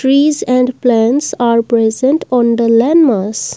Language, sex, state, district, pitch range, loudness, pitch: English, female, Assam, Kamrup Metropolitan, 230-265 Hz, -12 LUFS, 245 Hz